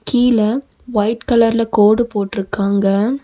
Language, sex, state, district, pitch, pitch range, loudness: Tamil, female, Tamil Nadu, Nilgiris, 225 Hz, 205-240 Hz, -16 LUFS